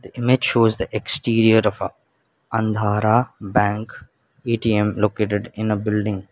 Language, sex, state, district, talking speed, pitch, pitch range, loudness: English, male, Sikkim, Gangtok, 135 wpm, 110 Hz, 105-115 Hz, -20 LUFS